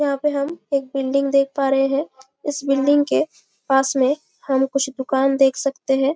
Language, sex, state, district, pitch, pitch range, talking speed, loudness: Hindi, female, Chhattisgarh, Bastar, 275 Hz, 270-280 Hz, 195 wpm, -20 LUFS